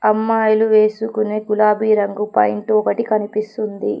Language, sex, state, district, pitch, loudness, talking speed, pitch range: Telugu, female, Telangana, Komaram Bheem, 215 Hz, -17 LUFS, 105 wpm, 210-215 Hz